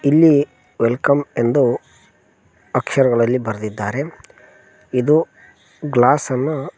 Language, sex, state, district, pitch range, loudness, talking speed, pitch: Kannada, male, Karnataka, Koppal, 120-150 Hz, -18 LUFS, 80 wpm, 135 Hz